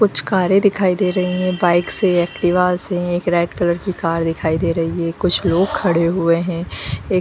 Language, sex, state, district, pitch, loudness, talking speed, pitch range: Hindi, female, Jharkhand, Jamtara, 175 Hz, -17 LUFS, 215 wpm, 170-185 Hz